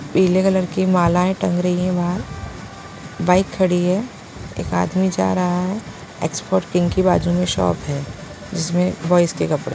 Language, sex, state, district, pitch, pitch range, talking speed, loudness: Hindi, female, Punjab, Pathankot, 180 Hz, 150-185 Hz, 165 wpm, -19 LUFS